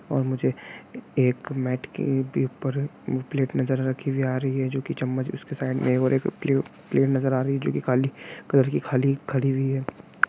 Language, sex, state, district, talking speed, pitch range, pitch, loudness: Hindi, male, Jharkhand, Sahebganj, 210 wpm, 130-135 Hz, 135 Hz, -25 LUFS